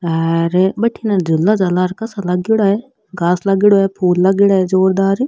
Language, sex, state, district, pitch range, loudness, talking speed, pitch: Rajasthani, female, Rajasthan, Nagaur, 180-205 Hz, -15 LUFS, 145 wpm, 190 Hz